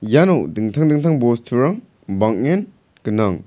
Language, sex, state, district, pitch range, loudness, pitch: Garo, male, Meghalaya, South Garo Hills, 110-165 Hz, -18 LUFS, 130 Hz